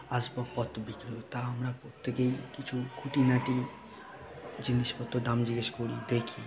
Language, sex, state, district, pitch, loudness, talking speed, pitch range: Bengali, male, West Bengal, Jhargram, 125 Hz, -33 LUFS, 110 wpm, 120-125 Hz